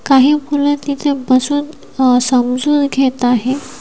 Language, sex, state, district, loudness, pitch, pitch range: Marathi, female, Maharashtra, Washim, -14 LUFS, 275 Hz, 255-290 Hz